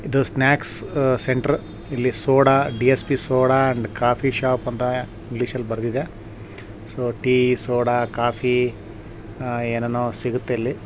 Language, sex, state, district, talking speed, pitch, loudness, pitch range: Kannada, male, Karnataka, Shimoga, 115 wpm, 125 Hz, -20 LUFS, 115-130 Hz